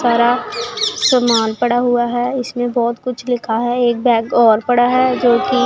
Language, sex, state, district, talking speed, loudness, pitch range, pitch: Hindi, female, Punjab, Pathankot, 180 wpm, -15 LUFS, 240-255 Hz, 245 Hz